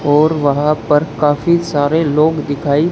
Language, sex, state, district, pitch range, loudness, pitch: Hindi, male, Haryana, Charkhi Dadri, 145-155 Hz, -14 LUFS, 150 Hz